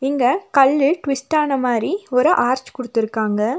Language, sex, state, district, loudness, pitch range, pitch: Tamil, female, Tamil Nadu, Nilgiris, -18 LUFS, 235-275 Hz, 260 Hz